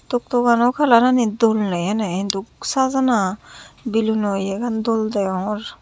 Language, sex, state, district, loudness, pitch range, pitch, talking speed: Chakma, female, Tripura, Unakoti, -19 LUFS, 200-240 Hz, 225 Hz, 135 wpm